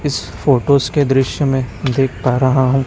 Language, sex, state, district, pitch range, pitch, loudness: Hindi, male, Chhattisgarh, Raipur, 130-140 Hz, 135 Hz, -16 LUFS